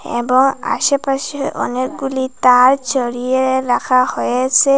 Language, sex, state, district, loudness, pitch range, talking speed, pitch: Bengali, female, Assam, Hailakandi, -15 LUFS, 250-270 Hz, 90 wpm, 260 Hz